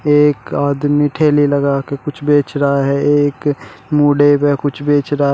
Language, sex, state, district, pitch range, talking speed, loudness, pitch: Hindi, male, Uttar Pradesh, Shamli, 140-145 Hz, 155 wpm, -14 LUFS, 145 Hz